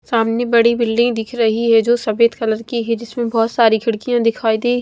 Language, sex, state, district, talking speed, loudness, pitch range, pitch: Hindi, female, Bihar, West Champaran, 210 wpm, -16 LUFS, 225-240 Hz, 230 Hz